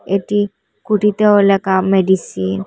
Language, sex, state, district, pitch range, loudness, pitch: Bengali, female, Assam, Hailakandi, 190-205 Hz, -15 LUFS, 195 Hz